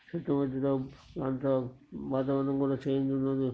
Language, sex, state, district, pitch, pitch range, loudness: Telugu, male, Andhra Pradesh, Srikakulam, 135 Hz, 135-140 Hz, -31 LUFS